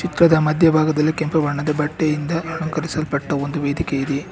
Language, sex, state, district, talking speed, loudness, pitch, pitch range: Kannada, male, Karnataka, Bangalore, 125 wpm, -19 LUFS, 155 Hz, 145-160 Hz